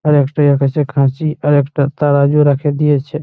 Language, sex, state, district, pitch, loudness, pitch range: Bengali, male, West Bengal, Malda, 145 Hz, -14 LUFS, 140-150 Hz